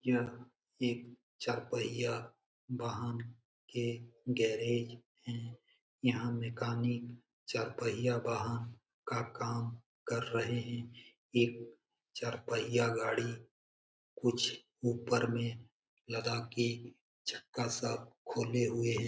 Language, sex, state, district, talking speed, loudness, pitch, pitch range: Hindi, male, Bihar, Jamui, 100 wpm, -37 LUFS, 120 Hz, 115-120 Hz